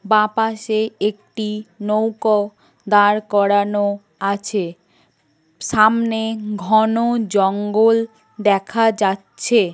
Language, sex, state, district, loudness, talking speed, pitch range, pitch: Bengali, female, West Bengal, North 24 Parganas, -18 LUFS, 75 wpm, 200-220 Hz, 210 Hz